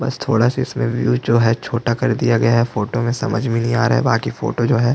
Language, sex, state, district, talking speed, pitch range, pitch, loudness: Hindi, male, Chhattisgarh, Jashpur, 290 wpm, 115-125 Hz, 120 Hz, -18 LUFS